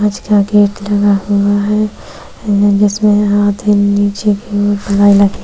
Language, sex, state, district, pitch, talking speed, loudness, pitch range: Hindi, female, Uttar Pradesh, Jyotiba Phule Nagar, 205 Hz, 110 wpm, -12 LUFS, 200-205 Hz